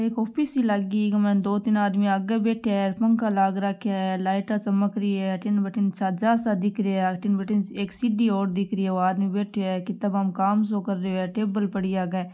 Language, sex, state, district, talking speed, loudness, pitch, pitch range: Marwari, female, Rajasthan, Nagaur, 245 wpm, -24 LUFS, 200 Hz, 195-210 Hz